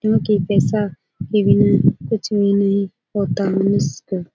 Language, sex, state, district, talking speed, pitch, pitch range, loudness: Hindi, female, Bihar, Jahanabad, 125 wpm, 200 Hz, 190-210 Hz, -18 LUFS